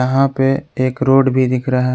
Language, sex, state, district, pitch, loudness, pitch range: Hindi, male, Jharkhand, Palamu, 130 Hz, -15 LUFS, 130-135 Hz